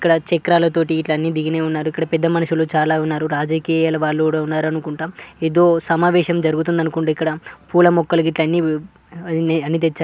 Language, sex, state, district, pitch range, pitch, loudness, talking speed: Telugu, male, Andhra Pradesh, Guntur, 155-170 Hz, 160 Hz, -18 LUFS, 145 wpm